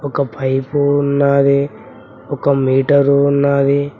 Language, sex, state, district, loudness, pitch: Telugu, male, Telangana, Mahabubabad, -14 LUFS, 140 Hz